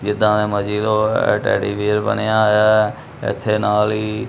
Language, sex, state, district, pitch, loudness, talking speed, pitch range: Punjabi, male, Punjab, Kapurthala, 105 Hz, -17 LUFS, 125 wpm, 105-110 Hz